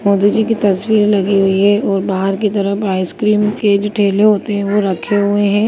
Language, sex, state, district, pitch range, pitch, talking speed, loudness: Hindi, female, Uttar Pradesh, Jyotiba Phule Nagar, 195-210 Hz, 205 Hz, 220 wpm, -14 LUFS